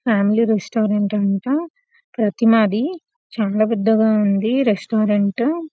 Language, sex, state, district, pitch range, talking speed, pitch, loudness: Telugu, female, Telangana, Karimnagar, 210-270 Hz, 105 wpm, 220 Hz, -18 LUFS